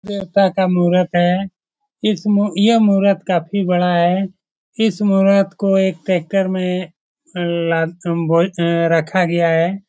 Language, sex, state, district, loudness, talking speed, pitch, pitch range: Hindi, male, Bihar, Supaul, -16 LUFS, 140 wpm, 185 Hz, 175-200 Hz